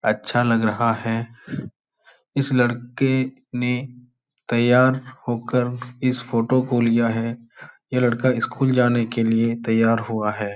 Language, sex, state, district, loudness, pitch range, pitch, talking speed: Hindi, male, Bihar, Supaul, -21 LUFS, 115-125 Hz, 120 Hz, 130 wpm